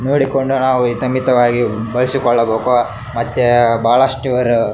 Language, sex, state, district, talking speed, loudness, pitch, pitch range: Kannada, male, Karnataka, Raichur, 115 wpm, -15 LUFS, 125 Hz, 120-130 Hz